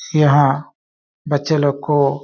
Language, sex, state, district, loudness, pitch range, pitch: Hindi, male, Chhattisgarh, Balrampur, -16 LUFS, 135-150 Hz, 145 Hz